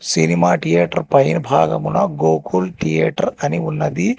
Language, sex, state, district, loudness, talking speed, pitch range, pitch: Telugu, male, Telangana, Hyderabad, -17 LUFS, 115 wpm, 80-90 Hz, 85 Hz